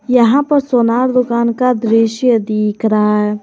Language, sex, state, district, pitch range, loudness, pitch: Hindi, female, Jharkhand, Garhwa, 215-250 Hz, -13 LUFS, 235 Hz